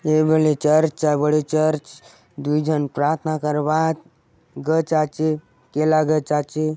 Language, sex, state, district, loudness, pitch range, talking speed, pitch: Halbi, male, Chhattisgarh, Bastar, -20 LUFS, 150-155 Hz, 140 wpm, 155 Hz